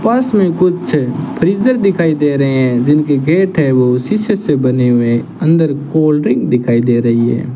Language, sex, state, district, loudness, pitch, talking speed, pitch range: Hindi, male, Rajasthan, Bikaner, -13 LUFS, 150 Hz, 180 wpm, 125-180 Hz